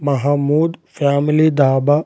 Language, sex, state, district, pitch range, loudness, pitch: Telugu, male, Telangana, Adilabad, 140-155 Hz, -16 LUFS, 145 Hz